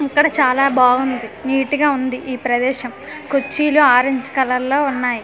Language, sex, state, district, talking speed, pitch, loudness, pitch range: Telugu, female, Andhra Pradesh, Manyam, 150 wpm, 265 Hz, -16 LUFS, 250-275 Hz